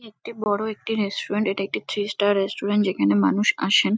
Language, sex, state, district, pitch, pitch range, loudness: Bengali, female, West Bengal, Kolkata, 205 Hz, 200-215 Hz, -23 LUFS